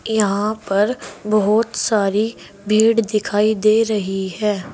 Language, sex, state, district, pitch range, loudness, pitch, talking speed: Hindi, female, Uttar Pradesh, Saharanpur, 205-220 Hz, -18 LUFS, 210 Hz, 115 wpm